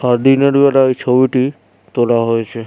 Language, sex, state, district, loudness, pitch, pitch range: Bengali, male, West Bengal, Jhargram, -13 LUFS, 125 Hz, 115-135 Hz